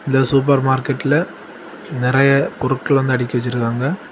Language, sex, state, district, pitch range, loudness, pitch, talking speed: Tamil, male, Tamil Nadu, Kanyakumari, 125-140 Hz, -17 LUFS, 135 Hz, 100 wpm